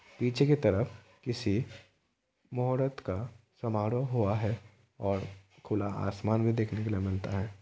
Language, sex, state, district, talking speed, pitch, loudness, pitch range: Hindi, male, Bihar, Kishanganj, 140 wpm, 110 Hz, -32 LUFS, 100-120 Hz